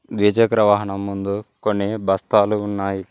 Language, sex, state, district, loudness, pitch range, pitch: Telugu, male, Telangana, Mahabubabad, -19 LUFS, 100-105 Hz, 100 Hz